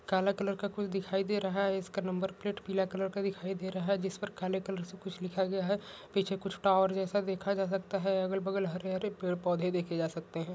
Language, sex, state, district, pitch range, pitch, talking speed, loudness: Hindi, male, Uttarakhand, Uttarkashi, 185-195 Hz, 195 Hz, 250 wpm, -34 LUFS